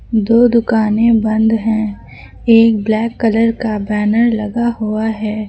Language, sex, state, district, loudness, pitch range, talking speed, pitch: Hindi, male, Uttar Pradesh, Lucknow, -14 LUFS, 215-230 Hz, 130 wpm, 220 Hz